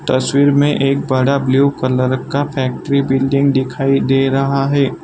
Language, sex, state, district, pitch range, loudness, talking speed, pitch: Hindi, male, Gujarat, Valsad, 130-140 Hz, -15 LUFS, 155 wpm, 135 Hz